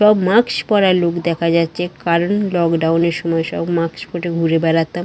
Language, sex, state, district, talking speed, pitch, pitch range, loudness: Bengali, female, West Bengal, Dakshin Dinajpur, 180 wpm, 170 Hz, 165-175 Hz, -17 LUFS